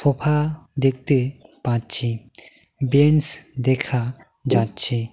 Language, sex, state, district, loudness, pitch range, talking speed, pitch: Bengali, male, West Bengal, Cooch Behar, -19 LUFS, 120-150 Hz, 70 wpm, 135 Hz